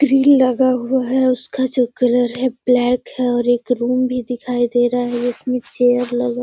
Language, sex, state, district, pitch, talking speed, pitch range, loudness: Hindi, female, Bihar, Gaya, 250 Hz, 205 wpm, 245-255 Hz, -17 LUFS